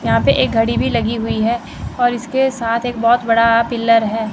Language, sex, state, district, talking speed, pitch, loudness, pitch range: Hindi, female, Chandigarh, Chandigarh, 220 wpm, 230 Hz, -16 LUFS, 225-240 Hz